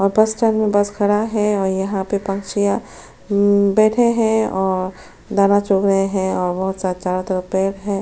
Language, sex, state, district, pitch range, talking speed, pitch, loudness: Hindi, female, Chhattisgarh, Sukma, 190-210 Hz, 200 wpm, 200 Hz, -18 LUFS